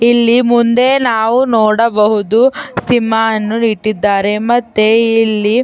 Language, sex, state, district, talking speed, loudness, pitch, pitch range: Kannada, female, Karnataka, Chamarajanagar, 105 wpm, -12 LUFS, 225 Hz, 215-240 Hz